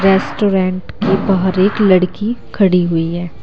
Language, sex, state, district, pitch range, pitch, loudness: Hindi, male, Uttar Pradesh, Saharanpur, 180-195 Hz, 190 Hz, -15 LUFS